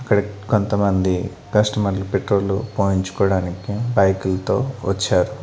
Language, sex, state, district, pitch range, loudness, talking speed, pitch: Telugu, male, Andhra Pradesh, Annamaya, 95-105 Hz, -20 LUFS, 100 wpm, 100 Hz